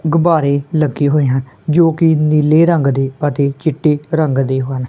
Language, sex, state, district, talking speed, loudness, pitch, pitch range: Punjabi, female, Punjab, Kapurthala, 170 wpm, -14 LUFS, 150 Hz, 135-160 Hz